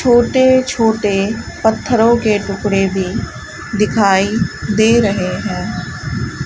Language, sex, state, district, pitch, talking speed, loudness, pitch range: Hindi, male, Rajasthan, Bikaner, 215 Hz, 85 wpm, -15 LUFS, 195-235 Hz